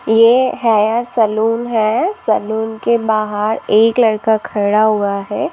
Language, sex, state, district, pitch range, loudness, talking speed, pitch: Hindi, female, Maharashtra, Nagpur, 215-230 Hz, -15 LUFS, 130 wpm, 220 Hz